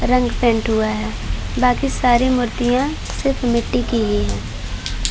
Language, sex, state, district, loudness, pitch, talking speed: Hindi, female, Uttar Pradesh, Varanasi, -19 LUFS, 235 Hz, 140 wpm